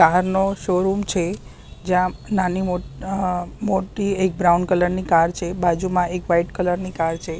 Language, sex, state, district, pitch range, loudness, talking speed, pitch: Gujarati, female, Maharashtra, Mumbai Suburban, 175-190 Hz, -21 LUFS, 180 wpm, 180 Hz